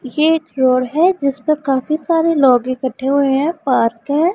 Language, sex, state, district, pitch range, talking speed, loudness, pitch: Hindi, female, Punjab, Pathankot, 260-315 Hz, 195 wpm, -16 LUFS, 280 Hz